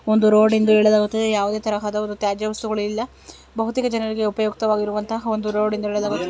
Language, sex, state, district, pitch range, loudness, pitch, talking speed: Kannada, female, Karnataka, Belgaum, 210-220 Hz, -20 LUFS, 215 Hz, 160 wpm